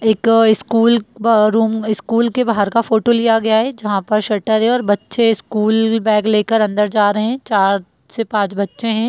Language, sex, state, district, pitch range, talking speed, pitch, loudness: Hindi, female, Bihar, Jamui, 210-230 Hz, 205 wpm, 220 Hz, -15 LUFS